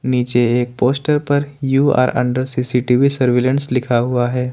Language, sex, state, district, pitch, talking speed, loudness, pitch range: Hindi, male, Jharkhand, Ranchi, 125 Hz, 145 wpm, -16 LUFS, 125-135 Hz